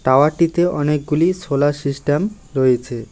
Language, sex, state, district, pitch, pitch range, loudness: Bengali, male, West Bengal, Alipurduar, 145 Hz, 135-165 Hz, -18 LUFS